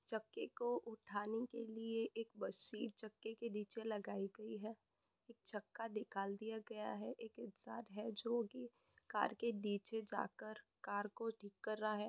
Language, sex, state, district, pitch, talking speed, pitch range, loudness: Hindi, female, Bihar, Jamui, 220 Hz, 170 wpm, 210-230 Hz, -46 LUFS